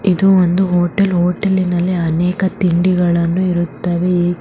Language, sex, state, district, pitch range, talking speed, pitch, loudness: Kannada, male, Karnataka, Raichur, 175-185 Hz, 120 wpm, 180 Hz, -15 LUFS